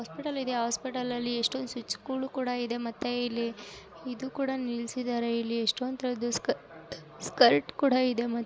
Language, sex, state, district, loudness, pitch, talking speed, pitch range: Kannada, female, Karnataka, Dharwad, -30 LUFS, 245 Hz, 150 wpm, 235-260 Hz